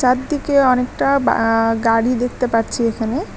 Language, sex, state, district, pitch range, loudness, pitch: Bengali, female, West Bengal, Alipurduar, 225-260 Hz, -17 LUFS, 250 Hz